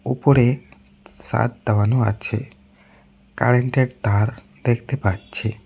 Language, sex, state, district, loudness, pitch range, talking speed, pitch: Bengali, male, West Bengal, Cooch Behar, -21 LUFS, 100-125 Hz, 85 wpm, 115 Hz